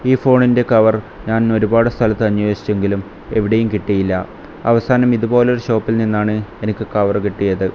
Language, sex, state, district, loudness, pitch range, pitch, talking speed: Malayalam, male, Kerala, Kasaragod, -16 LUFS, 105-115 Hz, 110 Hz, 125 wpm